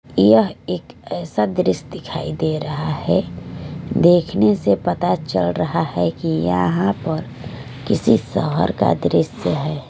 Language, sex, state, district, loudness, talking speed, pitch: Hindi, female, Bihar, Patna, -19 LUFS, 135 wpm, 105 Hz